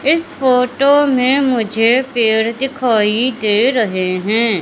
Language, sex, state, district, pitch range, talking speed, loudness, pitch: Hindi, female, Madhya Pradesh, Katni, 220-265 Hz, 115 wpm, -14 LUFS, 240 Hz